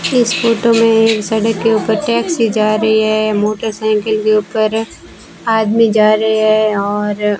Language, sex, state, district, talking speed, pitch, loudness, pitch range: Hindi, female, Rajasthan, Bikaner, 160 wpm, 215 Hz, -13 LUFS, 215-225 Hz